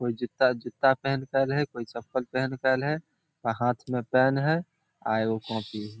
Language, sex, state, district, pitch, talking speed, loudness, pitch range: Maithili, male, Bihar, Samastipur, 130 Hz, 200 wpm, -28 LUFS, 120-135 Hz